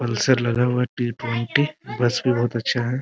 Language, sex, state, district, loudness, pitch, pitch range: Hindi, male, Bihar, Muzaffarpur, -22 LUFS, 120 Hz, 120-125 Hz